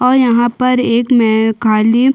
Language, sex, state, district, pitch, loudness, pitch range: Hindi, female, Chhattisgarh, Sukma, 240 Hz, -12 LUFS, 225-255 Hz